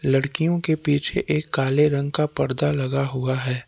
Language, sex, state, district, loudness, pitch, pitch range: Hindi, male, Jharkhand, Palamu, -22 LUFS, 140 Hz, 135-150 Hz